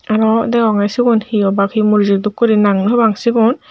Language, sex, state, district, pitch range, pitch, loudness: Chakma, male, Tripura, Unakoti, 205-230 Hz, 220 Hz, -13 LUFS